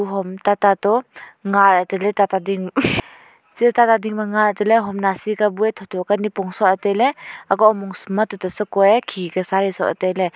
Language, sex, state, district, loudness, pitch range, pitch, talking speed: Wancho, female, Arunachal Pradesh, Longding, -18 LUFS, 190-215 Hz, 200 Hz, 220 wpm